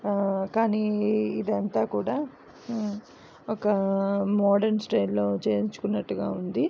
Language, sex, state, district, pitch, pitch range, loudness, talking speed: Telugu, female, Andhra Pradesh, Visakhapatnam, 205 Hz, 195-215 Hz, -26 LUFS, 100 wpm